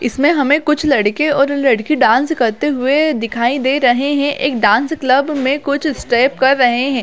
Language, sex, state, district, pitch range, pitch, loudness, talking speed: Hindi, female, Chhattisgarh, Bilaspur, 250-290 Hz, 275 Hz, -14 LUFS, 190 wpm